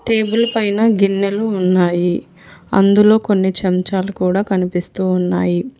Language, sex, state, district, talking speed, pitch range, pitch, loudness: Telugu, female, Telangana, Hyderabad, 105 wpm, 180-205 Hz, 190 Hz, -16 LUFS